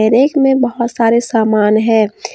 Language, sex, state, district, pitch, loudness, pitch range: Hindi, female, Jharkhand, Deoghar, 230 Hz, -13 LUFS, 220-245 Hz